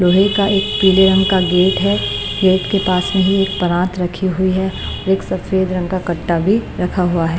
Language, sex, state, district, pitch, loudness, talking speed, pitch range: Hindi, female, Maharashtra, Mumbai Suburban, 185 Hz, -16 LUFS, 220 wpm, 180-195 Hz